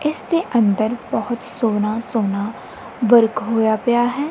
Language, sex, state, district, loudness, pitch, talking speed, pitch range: Punjabi, female, Punjab, Kapurthala, -19 LUFS, 230 Hz, 140 wpm, 220-240 Hz